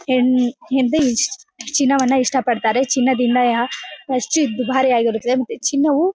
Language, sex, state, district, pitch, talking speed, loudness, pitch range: Kannada, female, Karnataka, Bellary, 260 Hz, 95 wpm, -17 LUFS, 245-275 Hz